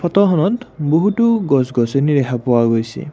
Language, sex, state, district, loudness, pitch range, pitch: Assamese, male, Assam, Kamrup Metropolitan, -16 LUFS, 125-195 Hz, 150 Hz